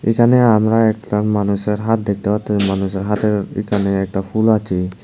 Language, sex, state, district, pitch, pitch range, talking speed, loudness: Bengali, male, Tripura, Unakoti, 105 Hz, 100-110 Hz, 155 wpm, -17 LUFS